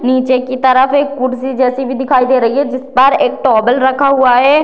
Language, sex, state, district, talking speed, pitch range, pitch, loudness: Hindi, female, Bihar, Sitamarhi, 230 wpm, 255-265 Hz, 260 Hz, -12 LUFS